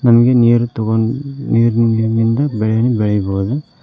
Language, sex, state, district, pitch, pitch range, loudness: Kannada, male, Karnataka, Koppal, 115 Hz, 110-125 Hz, -15 LUFS